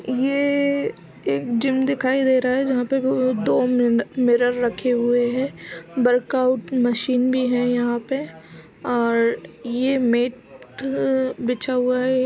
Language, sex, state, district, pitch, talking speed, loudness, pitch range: Hindi, female, Uttar Pradesh, Jalaun, 250 Hz, 135 wpm, -21 LUFS, 240-260 Hz